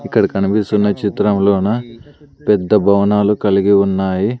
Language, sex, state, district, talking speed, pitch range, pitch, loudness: Telugu, male, Andhra Pradesh, Sri Satya Sai, 110 wpm, 100-105 Hz, 105 Hz, -15 LUFS